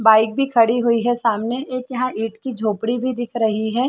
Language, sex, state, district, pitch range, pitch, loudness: Hindi, female, Chhattisgarh, Bilaspur, 225-255 Hz, 235 Hz, -20 LUFS